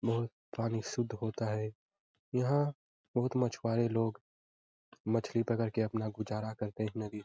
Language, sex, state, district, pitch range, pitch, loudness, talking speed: Hindi, male, Bihar, Lakhisarai, 110-115 Hz, 115 Hz, -35 LUFS, 130 wpm